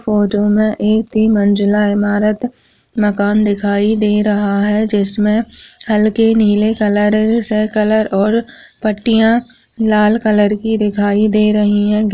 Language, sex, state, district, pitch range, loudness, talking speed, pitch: Hindi, female, Uttarakhand, Tehri Garhwal, 205-220 Hz, -14 LUFS, 135 wpm, 210 Hz